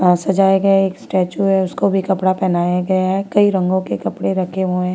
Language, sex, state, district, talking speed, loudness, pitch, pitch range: Hindi, female, Chhattisgarh, Korba, 195 wpm, -17 LUFS, 190 Hz, 180-195 Hz